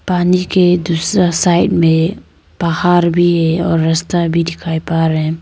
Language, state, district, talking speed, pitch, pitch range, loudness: Hindi, Arunachal Pradesh, Lower Dibang Valley, 165 wpm, 170 Hz, 165-175 Hz, -14 LUFS